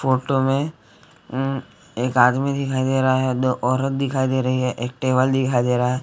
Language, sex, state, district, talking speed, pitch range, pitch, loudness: Hindi, male, Chhattisgarh, Bilaspur, 220 wpm, 125-135 Hz, 130 Hz, -21 LUFS